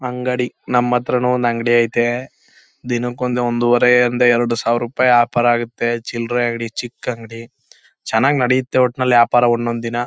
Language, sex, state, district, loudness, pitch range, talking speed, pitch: Kannada, male, Karnataka, Chamarajanagar, -17 LUFS, 120-125 Hz, 145 wpm, 120 Hz